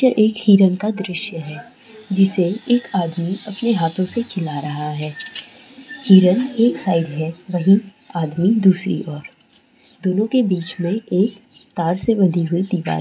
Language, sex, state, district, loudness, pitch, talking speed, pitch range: Hindi, female, Jharkhand, Jamtara, -18 LUFS, 190 Hz, 150 wpm, 175-230 Hz